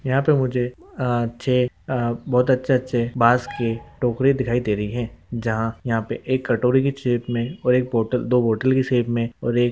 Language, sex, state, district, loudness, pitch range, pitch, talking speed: Hindi, male, Andhra Pradesh, Krishna, -21 LUFS, 120-130 Hz, 120 Hz, 205 wpm